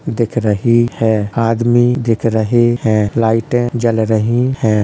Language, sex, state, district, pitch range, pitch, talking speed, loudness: Hindi, male, Uttar Pradesh, Hamirpur, 110-120 Hz, 115 Hz, 135 wpm, -14 LUFS